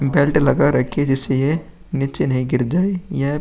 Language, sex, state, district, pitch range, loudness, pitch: Hindi, male, Uttar Pradesh, Muzaffarnagar, 135-160 Hz, -19 LUFS, 140 Hz